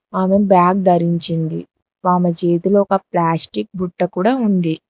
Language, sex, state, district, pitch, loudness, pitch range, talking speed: Telugu, female, Telangana, Hyderabad, 180 Hz, -16 LUFS, 170-190 Hz, 120 wpm